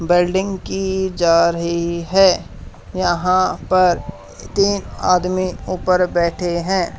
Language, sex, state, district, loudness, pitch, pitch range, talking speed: Hindi, male, Haryana, Charkhi Dadri, -18 LUFS, 180 Hz, 170-185 Hz, 105 wpm